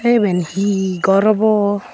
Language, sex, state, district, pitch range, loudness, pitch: Chakma, female, Tripura, Dhalai, 190-215 Hz, -16 LUFS, 200 Hz